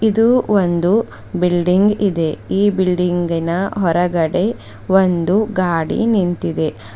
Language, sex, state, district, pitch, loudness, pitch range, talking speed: Kannada, female, Karnataka, Bidar, 180 Hz, -16 LUFS, 170-205 Hz, 85 wpm